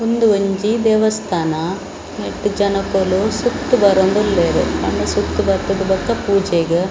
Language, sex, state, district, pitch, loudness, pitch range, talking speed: Tulu, female, Karnataka, Dakshina Kannada, 195 Hz, -17 LUFS, 190-215 Hz, 120 wpm